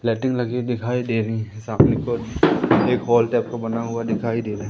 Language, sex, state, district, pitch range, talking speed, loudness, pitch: Hindi, male, Madhya Pradesh, Umaria, 115-120 Hz, 215 wpm, -21 LUFS, 115 Hz